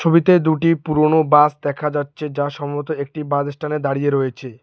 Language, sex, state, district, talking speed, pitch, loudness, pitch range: Bengali, male, West Bengal, Alipurduar, 170 wpm, 150 Hz, -18 LUFS, 145-155 Hz